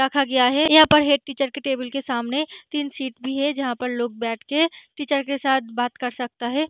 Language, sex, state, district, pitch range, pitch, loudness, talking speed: Hindi, female, Bihar, Samastipur, 250-290 Hz, 275 Hz, -21 LUFS, 240 wpm